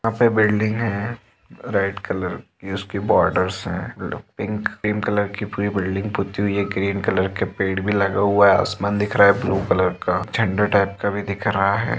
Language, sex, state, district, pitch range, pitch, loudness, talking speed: Hindi, female, Chhattisgarh, Raigarh, 100-105 Hz, 100 Hz, -21 LUFS, 215 wpm